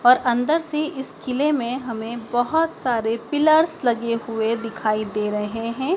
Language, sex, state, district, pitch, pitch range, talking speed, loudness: Hindi, female, Madhya Pradesh, Dhar, 245 Hz, 225-295 Hz, 160 wpm, -22 LUFS